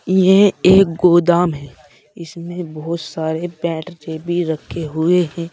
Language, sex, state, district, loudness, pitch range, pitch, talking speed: Hindi, male, Uttar Pradesh, Saharanpur, -16 LUFS, 160-175 Hz, 170 Hz, 120 wpm